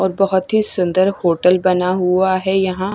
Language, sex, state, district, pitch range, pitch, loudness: Hindi, female, Chhattisgarh, Raipur, 180-190 Hz, 185 Hz, -16 LUFS